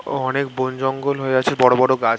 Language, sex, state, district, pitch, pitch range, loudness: Bengali, male, West Bengal, Malda, 130 Hz, 130-135 Hz, -19 LUFS